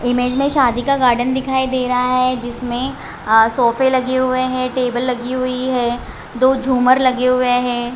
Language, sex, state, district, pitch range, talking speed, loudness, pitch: Hindi, female, Chhattisgarh, Raigarh, 245-260 Hz, 175 wpm, -16 LUFS, 255 Hz